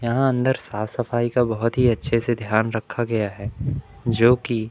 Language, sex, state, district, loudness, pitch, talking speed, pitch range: Hindi, male, Madhya Pradesh, Umaria, -22 LUFS, 120 Hz, 180 wpm, 110-125 Hz